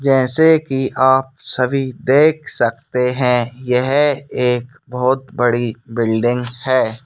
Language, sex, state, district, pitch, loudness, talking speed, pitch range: Hindi, male, Madhya Pradesh, Bhopal, 125 Hz, -16 LUFS, 110 wpm, 125-135 Hz